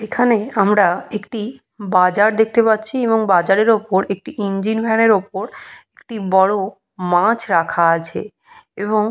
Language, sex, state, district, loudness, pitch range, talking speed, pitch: Bengali, female, Jharkhand, Jamtara, -17 LUFS, 195-225 Hz, 125 wpm, 210 Hz